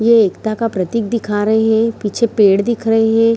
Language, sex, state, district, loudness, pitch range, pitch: Hindi, female, Bihar, Kishanganj, -15 LUFS, 210-230 Hz, 225 Hz